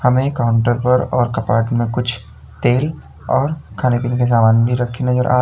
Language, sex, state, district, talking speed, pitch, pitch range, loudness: Hindi, male, Uttar Pradesh, Lalitpur, 200 wpm, 125 Hz, 115-125 Hz, -17 LUFS